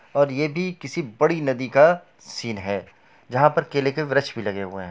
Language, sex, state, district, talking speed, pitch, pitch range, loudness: Hindi, male, Bihar, Gopalganj, 220 wpm, 140 Hz, 115-155 Hz, -22 LUFS